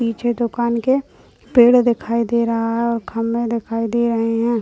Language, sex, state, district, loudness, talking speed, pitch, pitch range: Hindi, female, Chhattisgarh, Bilaspur, -18 LUFS, 170 wpm, 235 Hz, 230-235 Hz